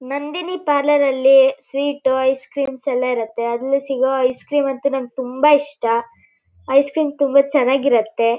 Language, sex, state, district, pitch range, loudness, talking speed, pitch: Kannada, female, Karnataka, Shimoga, 255-285 Hz, -18 LUFS, 145 wpm, 270 Hz